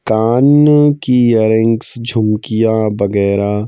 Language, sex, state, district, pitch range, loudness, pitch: Hindi, male, Madhya Pradesh, Bhopal, 105-120 Hz, -12 LUFS, 110 Hz